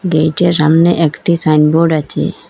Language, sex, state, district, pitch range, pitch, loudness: Bengali, female, Assam, Hailakandi, 155-170 Hz, 160 Hz, -12 LUFS